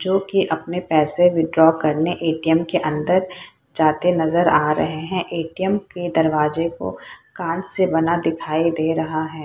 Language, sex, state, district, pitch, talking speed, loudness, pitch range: Hindi, female, Bihar, Purnia, 165 Hz, 165 wpm, -19 LUFS, 160-175 Hz